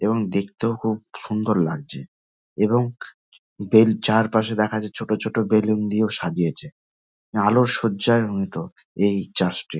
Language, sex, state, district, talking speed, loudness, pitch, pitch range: Bengali, male, West Bengal, North 24 Parganas, 130 wpm, -21 LUFS, 110 Hz, 100-110 Hz